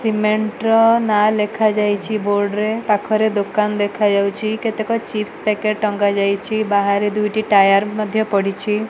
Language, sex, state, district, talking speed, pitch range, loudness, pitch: Odia, female, Odisha, Malkangiri, 130 wpm, 205-215 Hz, -17 LUFS, 210 Hz